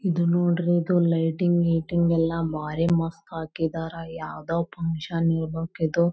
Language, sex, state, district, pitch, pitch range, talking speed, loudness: Kannada, female, Karnataka, Belgaum, 165 Hz, 165-170 Hz, 115 wpm, -25 LUFS